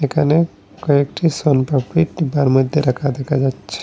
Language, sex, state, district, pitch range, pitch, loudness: Bengali, male, Assam, Hailakandi, 135-150 Hz, 140 Hz, -17 LUFS